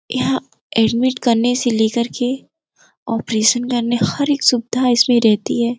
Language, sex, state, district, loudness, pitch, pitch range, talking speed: Hindi, female, Uttar Pradesh, Gorakhpur, -17 LUFS, 240 Hz, 230-255 Hz, 145 wpm